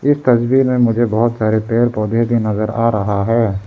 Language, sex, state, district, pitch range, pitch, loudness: Hindi, male, Arunachal Pradesh, Lower Dibang Valley, 110-120 Hz, 115 Hz, -15 LUFS